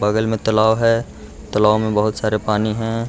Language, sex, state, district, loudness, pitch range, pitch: Hindi, male, Bihar, Gaya, -18 LUFS, 105-110 Hz, 110 Hz